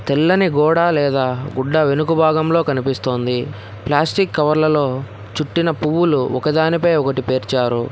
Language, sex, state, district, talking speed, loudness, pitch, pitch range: Telugu, male, Telangana, Hyderabad, 130 wpm, -17 LUFS, 150 Hz, 130-160 Hz